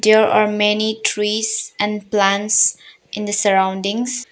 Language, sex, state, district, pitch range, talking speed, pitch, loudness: English, female, Arunachal Pradesh, Papum Pare, 205-215 Hz, 125 wpm, 210 Hz, -17 LUFS